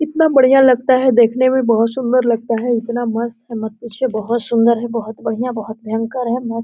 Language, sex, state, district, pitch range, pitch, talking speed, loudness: Hindi, female, Jharkhand, Sahebganj, 230-255 Hz, 235 Hz, 210 wpm, -16 LUFS